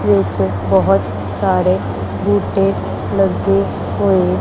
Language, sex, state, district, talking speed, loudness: Punjabi, female, Punjab, Kapurthala, 80 wpm, -16 LUFS